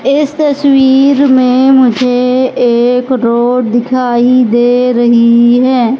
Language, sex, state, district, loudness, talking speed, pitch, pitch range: Hindi, female, Madhya Pradesh, Katni, -9 LUFS, 100 wpm, 250 Hz, 240-265 Hz